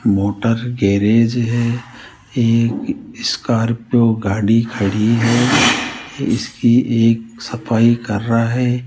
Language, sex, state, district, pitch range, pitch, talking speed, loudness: Hindi, male, Rajasthan, Jaipur, 115-120 Hz, 115 Hz, 95 wpm, -16 LUFS